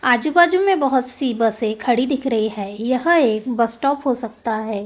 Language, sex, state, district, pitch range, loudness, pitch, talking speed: Hindi, female, Maharashtra, Gondia, 225-275 Hz, -19 LUFS, 245 Hz, 200 wpm